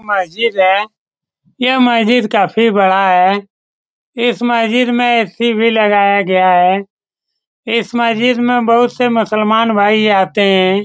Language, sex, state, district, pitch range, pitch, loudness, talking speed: Hindi, male, Bihar, Saran, 200-235 Hz, 220 Hz, -12 LUFS, 140 wpm